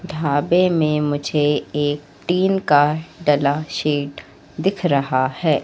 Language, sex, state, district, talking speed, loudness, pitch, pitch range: Hindi, female, Madhya Pradesh, Katni, 115 wpm, -19 LUFS, 150 Hz, 145-170 Hz